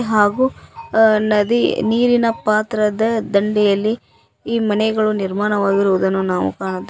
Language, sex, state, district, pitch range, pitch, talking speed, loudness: Kannada, female, Karnataka, Koppal, 200-225 Hz, 215 Hz, 95 wpm, -17 LUFS